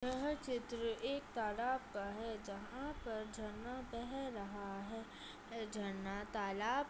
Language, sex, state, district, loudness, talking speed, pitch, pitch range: Hindi, female, Rajasthan, Nagaur, -44 LUFS, 130 wpm, 225 Hz, 205-255 Hz